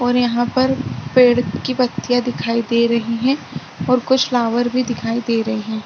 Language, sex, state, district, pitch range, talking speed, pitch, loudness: Hindi, female, Maharashtra, Chandrapur, 230-250 Hz, 175 wpm, 240 Hz, -18 LUFS